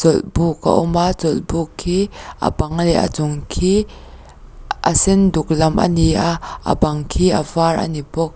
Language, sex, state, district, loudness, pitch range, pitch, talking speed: Mizo, female, Mizoram, Aizawl, -17 LUFS, 160-180 Hz, 165 Hz, 195 wpm